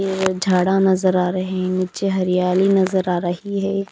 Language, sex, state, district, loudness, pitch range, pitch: Hindi, female, Punjab, Kapurthala, -19 LUFS, 180-195 Hz, 185 Hz